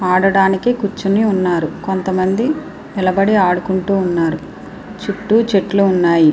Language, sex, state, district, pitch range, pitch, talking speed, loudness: Telugu, female, Andhra Pradesh, Srikakulam, 185-205 Hz, 190 Hz, 95 wpm, -15 LUFS